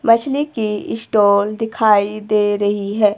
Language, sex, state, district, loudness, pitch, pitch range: Hindi, female, Himachal Pradesh, Shimla, -17 LUFS, 210 Hz, 205-225 Hz